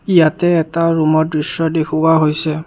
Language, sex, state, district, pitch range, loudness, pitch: Assamese, male, Assam, Kamrup Metropolitan, 155-165 Hz, -15 LUFS, 160 Hz